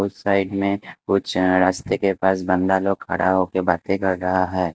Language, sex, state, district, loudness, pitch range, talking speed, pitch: Hindi, male, Himachal Pradesh, Shimla, -21 LUFS, 95-100 Hz, 190 wpm, 95 Hz